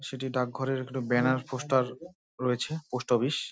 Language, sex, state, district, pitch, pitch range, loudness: Bengali, male, West Bengal, Dakshin Dinajpur, 130 Hz, 125-135 Hz, -30 LUFS